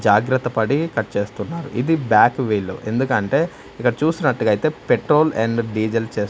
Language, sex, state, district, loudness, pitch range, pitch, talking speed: Telugu, male, Andhra Pradesh, Manyam, -19 LUFS, 110-150 Hz, 120 Hz, 135 wpm